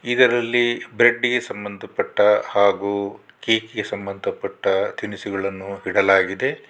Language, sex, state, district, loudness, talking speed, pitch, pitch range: Kannada, male, Karnataka, Bangalore, -20 LUFS, 90 wpm, 100 Hz, 100-120 Hz